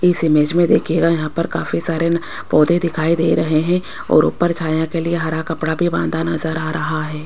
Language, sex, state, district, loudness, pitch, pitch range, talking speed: Hindi, female, Rajasthan, Jaipur, -17 LUFS, 165 Hz, 160-170 Hz, 215 wpm